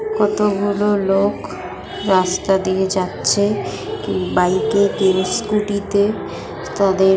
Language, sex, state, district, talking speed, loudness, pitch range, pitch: Bengali, female, West Bengal, North 24 Parganas, 125 wpm, -18 LUFS, 190-205 Hz, 200 Hz